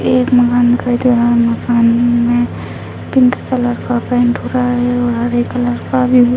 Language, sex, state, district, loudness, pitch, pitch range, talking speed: Hindi, female, Bihar, Jamui, -13 LUFS, 240 Hz, 205-245 Hz, 200 wpm